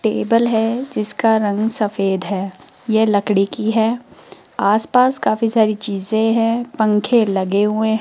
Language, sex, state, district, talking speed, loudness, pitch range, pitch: Hindi, female, Rajasthan, Jaipur, 150 wpm, -17 LUFS, 205-225 Hz, 220 Hz